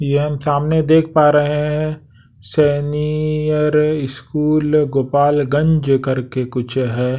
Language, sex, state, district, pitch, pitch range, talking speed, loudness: Hindi, male, Bihar, West Champaran, 150 Hz, 135-150 Hz, 110 wpm, -16 LUFS